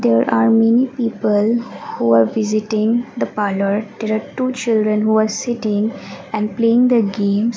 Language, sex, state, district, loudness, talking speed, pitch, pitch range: English, female, Assam, Kamrup Metropolitan, -17 LUFS, 160 wpm, 215 Hz, 205-230 Hz